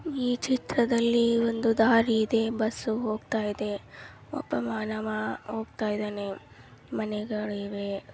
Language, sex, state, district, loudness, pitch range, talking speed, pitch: Kannada, male, Karnataka, Dharwad, -28 LUFS, 210-230 Hz, 95 wpm, 220 Hz